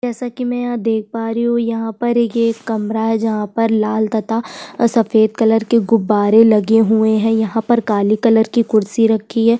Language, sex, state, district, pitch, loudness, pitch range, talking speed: Hindi, female, Chhattisgarh, Sukma, 225 Hz, -15 LUFS, 220-230 Hz, 200 wpm